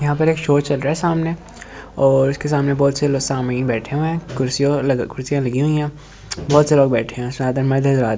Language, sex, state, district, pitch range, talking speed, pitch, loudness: Hindi, male, Delhi, New Delhi, 130-150 Hz, 205 wpm, 140 Hz, -18 LUFS